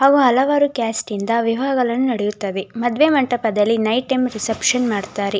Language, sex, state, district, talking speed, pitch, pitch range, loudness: Kannada, female, Karnataka, Shimoga, 120 wpm, 235 Hz, 215-260 Hz, -18 LUFS